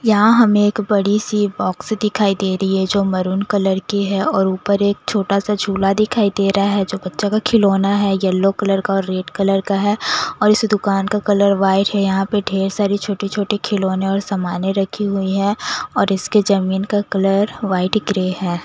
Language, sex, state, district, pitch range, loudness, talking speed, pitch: Hindi, female, Punjab, Kapurthala, 195-205 Hz, -17 LUFS, 205 wpm, 200 Hz